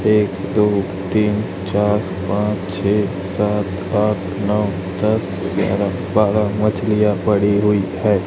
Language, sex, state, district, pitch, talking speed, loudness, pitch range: Hindi, male, Chhattisgarh, Raipur, 100 Hz, 115 wpm, -18 LUFS, 95-105 Hz